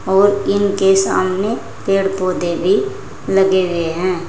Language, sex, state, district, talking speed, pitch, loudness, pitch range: Hindi, female, Uttar Pradesh, Saharanpur, 125 wpm, 195 Hz, -16 LUFS, 185-200 Hz